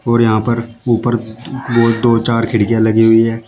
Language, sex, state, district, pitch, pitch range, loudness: Hindi, male, Uttar Pradesh, Shamli, 115 Hz, 115-120 Hz, -14 LUFS